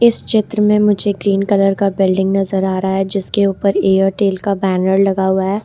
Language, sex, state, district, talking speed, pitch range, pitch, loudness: Hindi, female, Jharkhand, Ranchi, 225 wpm, 190-205 Hz, 195 Hz, -15 LUFS